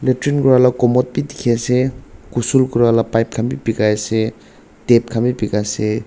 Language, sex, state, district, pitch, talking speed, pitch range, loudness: Nagamese, male, Nagaland, Dimapur, 115 Hz, 160 wpm, 110-125 Hz, -16 LUFS